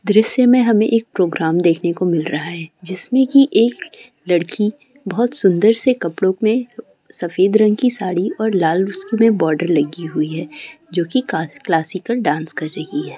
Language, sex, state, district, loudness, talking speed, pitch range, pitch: Hindi, female, Bihar, Saran, -17 LUFS, 175 wpm, 170-230 Hz, 195 Hz